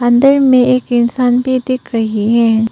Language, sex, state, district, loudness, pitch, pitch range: Hindi, female, Arunachal Pradesh, Papum Pare, -12 LUFS, 245 Hz, 230-255 Hz